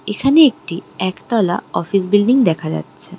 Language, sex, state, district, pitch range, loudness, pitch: Bengali, female, West Bengal, Darjeeling, 175-235 Hz, -16 LUFS, 200 Hz